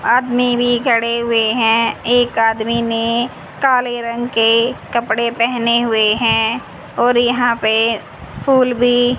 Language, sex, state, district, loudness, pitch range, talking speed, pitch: Hindi, female, Haryana, Jhajjar, -15 LUFS, 230-245 Hz, 130 wpm, 235 Hz